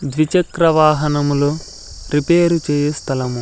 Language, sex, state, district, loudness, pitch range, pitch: Telugu, male, Andhra Pradesh, Sri Satya Sai, -16 LUFS, 145-160 Hz, 150 Hz